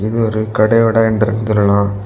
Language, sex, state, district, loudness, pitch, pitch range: Tamil, male, Tamil Nadu, Kanyakumari, -14 LUFS, 110 Hz, 105-115 Hz